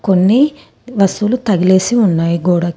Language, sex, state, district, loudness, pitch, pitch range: Telugu, female, Telangana, Komaram Bheem, -13 LUFS, 195 Hz, 180-230 Hz